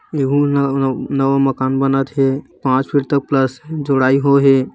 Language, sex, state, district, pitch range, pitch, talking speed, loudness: Hindi, male, Chhattisgarh, Bilaspur, 135-140 Hz, 135 Hz, 165 wpm, -16 LUFS